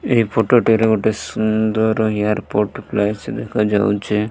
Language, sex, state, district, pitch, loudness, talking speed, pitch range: Odia, male, Odisha, Malkangiri, 110 Hz, -18 LUFS, 125 wpm, 105-110 Hz